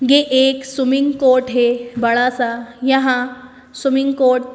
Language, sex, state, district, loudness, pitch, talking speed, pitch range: Hindi, female, Madhya Pradesh, Bhopal, -16 LUFS, 255 Hz, 145 wpm, 245-270 Hz